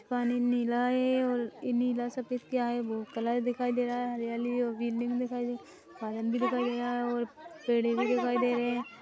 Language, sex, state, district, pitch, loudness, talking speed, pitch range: Hindi, female, Chhattisgarh, Rajnandgaon, 245 Hz, -31 LUFS, 220 wpm, 240-245 Hz